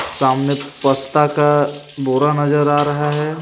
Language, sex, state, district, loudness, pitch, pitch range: Hindi, male, Jharkhand, Ranchi, -16 LUFS, 145 Hz, 140-150 Hz